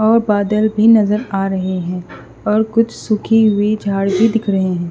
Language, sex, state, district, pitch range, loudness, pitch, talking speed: Hindi, female, Haryana, Rohtak, 195-220 Hz, -15 LUFS, 210 Hz, 195 wpm